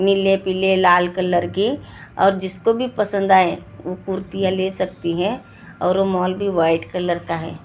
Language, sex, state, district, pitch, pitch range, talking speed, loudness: Hindi, female, Maharashtra, Gondia, 185 Hz, 175-195 Hz, 180 wpm, -19 LUFS